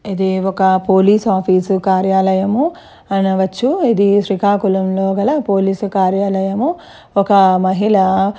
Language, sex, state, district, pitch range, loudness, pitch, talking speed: Telugu, female, Andhra Pradesh, Srikakulam, 190-205 Hz, -14 LUFS, 195 Hz, 105 wpm